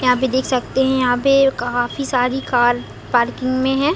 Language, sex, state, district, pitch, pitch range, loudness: Hindi, female, Chhattisgarh, Raigarh, 255 Hz, 245-265 Hz, -18 LUFS